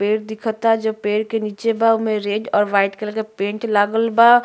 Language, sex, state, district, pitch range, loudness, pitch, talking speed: Bhojpuri, female, Uttar Pradesh, Gorakhpur, 210-225 Hz, -19 LUFS, 220 Hz, 215 wpm